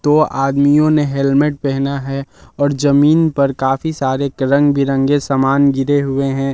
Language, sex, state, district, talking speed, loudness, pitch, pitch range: Hindi, male, Jharkhand, Palamu, 155 wpm, -15 LUFS, 140 Hz, 135-145 Hz